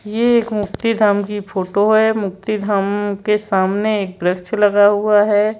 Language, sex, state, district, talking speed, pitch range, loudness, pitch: Hindi, male, Madhya Pradesh, Bhopal, 170 wpm, 200-215 Hz, -16 LUFS, 205 Hz